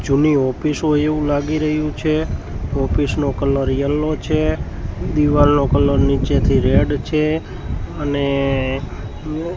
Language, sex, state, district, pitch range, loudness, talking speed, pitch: Gujarati, male, Gujarat, Gandhinagar, 135-155 Hz, -18 LUFS, 115 wpm, 145 Hz